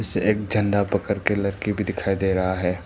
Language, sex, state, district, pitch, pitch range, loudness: Hindi, male, Arunachal Pradesh, Papum Pare, 100 Hz, 95-105 Hz, -23 LUFS